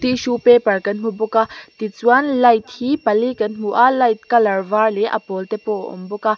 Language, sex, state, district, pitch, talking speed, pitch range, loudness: Mizo, female, Mizoram, Aizawl, 220 Hz, 225 wpm, 215-245 Hz, -17 LUFS